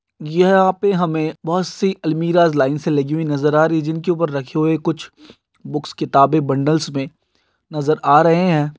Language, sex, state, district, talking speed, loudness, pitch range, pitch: Hindi, male, Andhra Pradesh, Guntur, 190 wpm, -17 LUFS, 150-175 Hz, 160 Hz